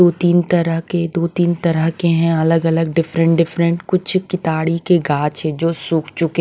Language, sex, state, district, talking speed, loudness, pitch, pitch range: Hindi, female, Bihar, West Champaran, 180 wpm, -17 LUFS, 165 Hz, 165-175 Hz